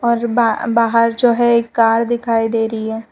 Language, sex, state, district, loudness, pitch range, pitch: Hindi, female, Gujarat, Valsad, -15 LUFS, 225-235 Hz, 230 Hz